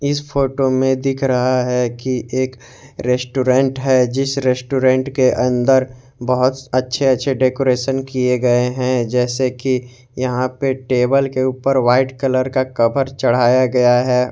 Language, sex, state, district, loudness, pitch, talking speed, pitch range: Hindi, male, Jharkhand, Garhwa, -17 LUFS, 130 Hz, 140 wpm, 125-135 Hz